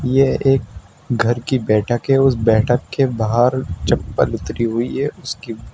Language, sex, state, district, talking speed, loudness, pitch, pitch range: Hindi, male, Uttar Pradesh, Shamli, 165 wpm, -18 LUFS, 120 Hz, 115-135 Hz